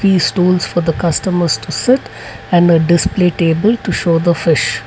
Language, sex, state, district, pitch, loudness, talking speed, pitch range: English, male, Karnataka, Bangalore, 175 Hz, -13 LUFS, 185 wpm, 165-185 Hz